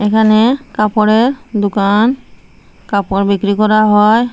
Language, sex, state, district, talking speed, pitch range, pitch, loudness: Bengali, female, Assam, Hailakandi, 95 wpm, 205-225 Hz, 215 Hz, -12 LUFS